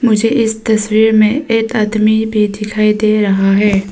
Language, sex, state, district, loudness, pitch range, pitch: Hindi, female, Arunachal Pradesh, Papum Pare, -12 LUFS, 210-220 Hz, 215 Hz